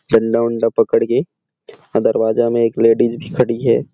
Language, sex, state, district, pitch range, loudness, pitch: Hindi, male, Chhattisgarh, Sarguja, 115-120 Hz, -16 LUFS, 115 Hz